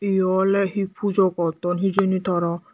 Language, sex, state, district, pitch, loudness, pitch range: Chakma, female, Tripura, Dhalai, 190 Hz, -22 LUFS, 180-200 Hz